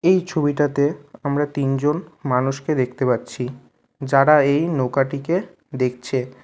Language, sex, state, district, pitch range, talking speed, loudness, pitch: Bengali, male, West Bengal, Alipurduar, 130-150 Hz, 100 wpm, -21 LUFS, 140 Hz